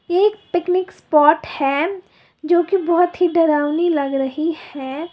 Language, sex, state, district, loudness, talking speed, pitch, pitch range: Hindi, female, Uttar Pradesh, Lalitpur, -18 LUFS, 150 wpm, 335 Hz, 295-355 Hz